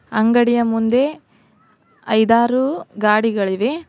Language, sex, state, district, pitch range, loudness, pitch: Kannada, female, Karnataka, Koppal, 220-250 Hz, -17 LUFS, 230 Hz